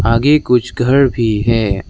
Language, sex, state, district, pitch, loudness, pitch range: Hindi, male, Arunachal Pradesh, Lower Dibang Valley, 115 Hz, -13 LUFS, 110-130 Hz